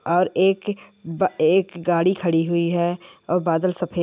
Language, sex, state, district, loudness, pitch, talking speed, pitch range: Hindi, male, Andhra Pradesh, Guntur, -21 LUFS, 175 Hz, 165 wpm, 170-185 Hz